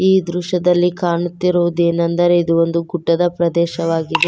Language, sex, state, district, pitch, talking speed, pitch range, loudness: Kannada, female, Karnataka, Koppal, 175 Hz, 100 wpm, 170-175 Hz, -16 LUFS